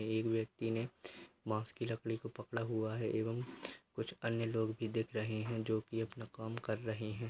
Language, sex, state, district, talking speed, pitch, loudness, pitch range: Hindi, male, Bihar, Purnia, 205 wpm, 115 Hz, -40 LUFS, 110-115 Hz